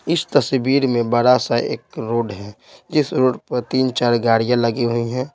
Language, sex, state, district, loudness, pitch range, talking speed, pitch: Hindi, male, Bihar, Patna, -18 LUFS, 120-130 Hz, 180 wpm, 125 Hz